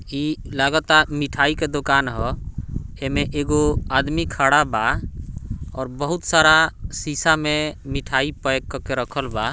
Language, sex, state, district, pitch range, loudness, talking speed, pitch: Bhojpuri, male, Bihar, Muzaffarpur, 135-150 Hz, -20 LUFS, 140 wpm, 145 Hz